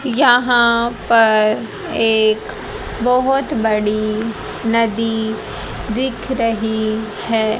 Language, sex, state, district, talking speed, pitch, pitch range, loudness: Hindi, female, Haryana, Jhajjar, 70 wpm, 225 Hz, 220-240 Hz, -17 LUFS